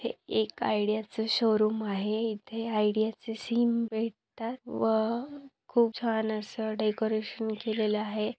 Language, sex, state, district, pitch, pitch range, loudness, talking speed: Marathi, female, Maharashtra, Solapur, 220 Hz, 215-230 Hz, -30 LUFS, 115 wpm